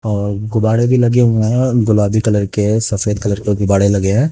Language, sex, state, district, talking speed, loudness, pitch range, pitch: Hindi, male, Haryana, Jhajjar, 235 wpm, -14 LUFS, 100-115 Hz, 105 Hz